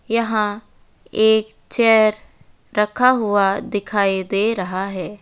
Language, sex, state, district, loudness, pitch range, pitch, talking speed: Hindi, female, West Bengal, Alipurduar, -18 LUFS, 200-220 Hz, 215 Hz, 105 wpm